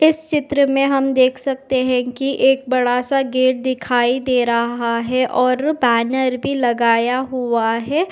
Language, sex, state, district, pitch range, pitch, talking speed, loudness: Hindi, female, Uttar Pradesh, Deoria, 245-270 Hz, 255 Hz, 160 wpm, -17 LUFS